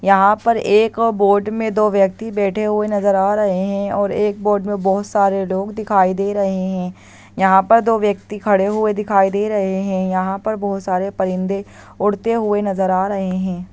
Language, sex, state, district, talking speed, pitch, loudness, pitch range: Hindi, female, Bihar, Muzaffarpur, 195 wpm, 200 Hz, -17 LUFS, 195-210 Hz